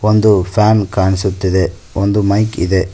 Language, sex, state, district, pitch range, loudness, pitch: Kannada, male, Karnataka, Koppal, 95-105 Hz, -14 LUFS, 95 Hz